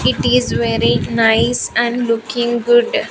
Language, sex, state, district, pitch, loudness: English, female, Andhra Pradesh, Sri Satya Sai, 230 Hz, -15 LUFS